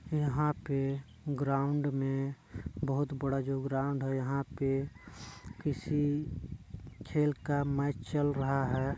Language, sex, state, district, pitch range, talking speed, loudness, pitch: Hindi, male, Chhattisgarh, Raigarh, 135-145 Hz, 120 wpm, -33 LUFS, 140 Hz